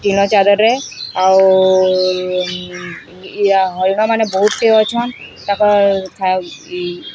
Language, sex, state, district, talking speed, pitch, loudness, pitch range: Odia, female, Odisha, Sambalpur, 100 wpm, 195 Hz, -14 LUFS, 185-215 Hz